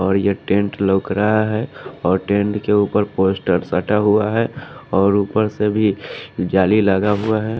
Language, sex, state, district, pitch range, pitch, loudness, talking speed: Hindi, male, Haryana, Jhajjar, 95-105 Hz, 105 Hz, -18 LUFS, 175 wpm